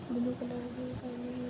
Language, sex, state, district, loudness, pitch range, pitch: Hindi, female, Uttarakhand, Tehri Garhwal, -38 LUFS, 245-250 Hz, 245 Hz